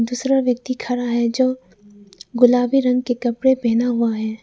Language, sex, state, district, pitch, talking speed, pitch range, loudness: Hindi, female, Arunachal Pradesh, Lower Dibang Valley, 245 Hz, 160 wpm, 230-255 Hz, -18 LUFS